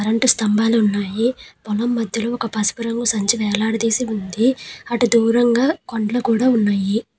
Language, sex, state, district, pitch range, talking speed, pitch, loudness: Telugu, female, Telangana, Hyderabad, 215-240 Hz, 135 wpm, 230 Hz, -18 LUFS